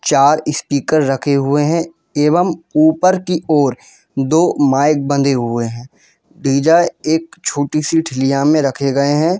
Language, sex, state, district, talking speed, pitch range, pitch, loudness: Hindi, male, Jharkhand, Jamtara, 135 wpm, 140-160 Hz, 145 Hz, -15 LUFS